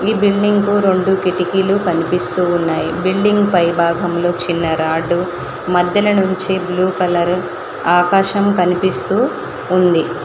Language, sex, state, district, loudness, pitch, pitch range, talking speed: Telugu, female, Telangana, Mahabubabad, -15 LUFS, 180 Hz, 175-195 Hz, 110 wpm